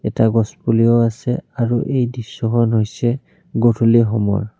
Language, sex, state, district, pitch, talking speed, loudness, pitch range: Assamese, male, Assam, Kamrup Metropolitan, 115 Hz, 130 wpm, -17 LUFS, 115-120 Hz